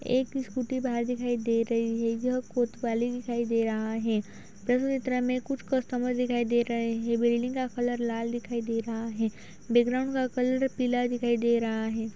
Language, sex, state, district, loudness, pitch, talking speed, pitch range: Hindi, female, Uttar Pradesh, Budaun, -29 LUFS, 240 Hz, 175 wpm, 230-250 Hz